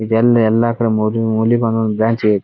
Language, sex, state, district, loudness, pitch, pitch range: Kannada, male, Karnataka, Dharwad, -15 LUFS, 115 Hz, 110-115 Hz